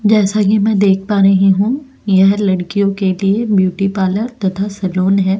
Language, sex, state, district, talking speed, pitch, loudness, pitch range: Hindi, female, Goa, North and South Goa, 165 wpm, 195 Hz, -14 LUFS, 190-205 Hz